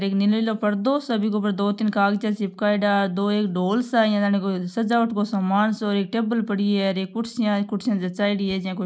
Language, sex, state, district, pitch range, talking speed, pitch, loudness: Marwari, female, Rajasthan, Nagaur, 200-220 Hz, 245 wpm, 205 Hz, -22 LUFS